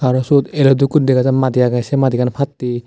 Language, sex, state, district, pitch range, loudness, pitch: Chakma, male, Tripura, Dhalai, 125-140 Hz, -15 LUFS, 130 Hz